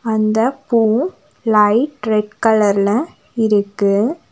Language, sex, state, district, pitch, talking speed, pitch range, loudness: Tamil, female, Tamil Nadu, Nilgiris, 220 Hz, 85 wpm, 210-235 Hz, -16 LUFS